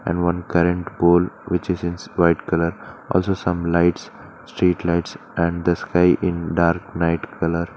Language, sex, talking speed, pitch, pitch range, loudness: English, male, 160 wpm, 85 Hz, 85-90 Hz, -20 LUFS